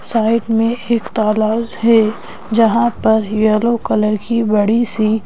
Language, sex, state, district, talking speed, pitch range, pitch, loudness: Hindi, female, Madhya Pradesh, Bhopal, 150 wpm, 215-230 Hz, 225 Hz, -15 LUFS